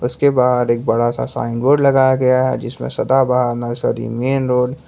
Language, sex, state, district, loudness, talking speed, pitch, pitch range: Hindi, male, Jharkhand, Palamu, -16 LUFS, 185 wpm, 125 Hz, 120-130 Hz